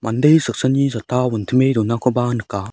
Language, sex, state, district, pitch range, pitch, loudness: Garo, male, Meghalaya, South Garo Hills, 115-130 Hz, 120 Hz, -18 LUFS